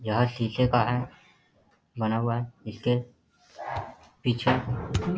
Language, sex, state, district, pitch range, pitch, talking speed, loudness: Hindi, male, Bihar, Jahanabad, 115-125 Hz, 120 Hz, 115 wpm, -28 LUFS